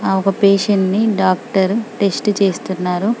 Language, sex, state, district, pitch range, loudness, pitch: Telugu, female, Telangana, Karimnagar, 190-210 Hz, -16 LUFS, 195 Hz